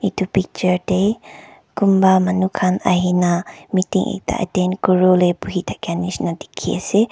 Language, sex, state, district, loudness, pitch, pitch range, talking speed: Nagamese, male, Nagaland, Kohima, -18 LUFS, 185 Hz, 180-190 Hz, 145 wpm